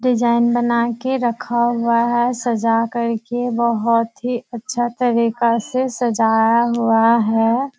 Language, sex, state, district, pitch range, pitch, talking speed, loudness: Hindi, female, Bihar, Kishanganj, 230-245 Hz, 235 Hz, 130 wpm, -18 LUFS